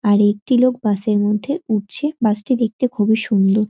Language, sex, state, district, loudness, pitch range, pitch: Bengali, female, West Bengal, North 24 Parganas, -18 LUFS, 205-250 Hz, 215 Hz